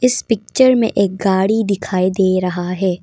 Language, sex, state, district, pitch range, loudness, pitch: Hindi, female, Arunachal Pradesh, Papum Pare, 185-225 Hz, -16 LUFS, 195 Hz